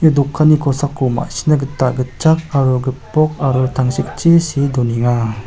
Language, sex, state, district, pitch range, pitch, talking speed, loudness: Garo, male, Meghalaya, South Garo Hills, 130-155 Hz, 135 Hz, 130 wpm, -15 LUFS